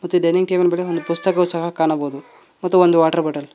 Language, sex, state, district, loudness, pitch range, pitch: Kannada, male, Karnataka, Koppal, -18 LUFS, 160-180 Hz, 170 Hz